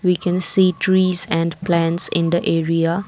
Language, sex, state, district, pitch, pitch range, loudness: English, female, Assam, Kamrup Metropolitan, 175 Hz, 165-185 Hz, -17 LUFS